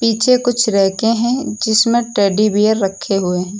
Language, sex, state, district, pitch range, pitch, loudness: Hindi, female, Uttar Pradesh, Lucknow, 195-235 Hz, 215 Hz, -15 LUFS